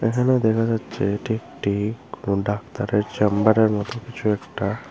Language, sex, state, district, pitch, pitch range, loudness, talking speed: Bengali, female, Tripura, Unakoti, 110 Hz, 105-115 Hz, -22 LUFS, 135 wpm